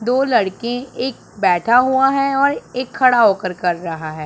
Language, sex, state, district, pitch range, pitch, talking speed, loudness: Hindi, male, Punjab, Pathankot, 185-260 Hz, 245 Hz, 185 wpm, -17 LUFS